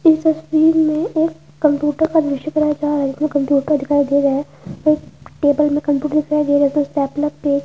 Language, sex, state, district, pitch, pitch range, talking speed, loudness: Hindi, female, Uttar Pradesh, Budaun, 295 Hz, 285-310 Hz, 220 wpm, -17 LUFS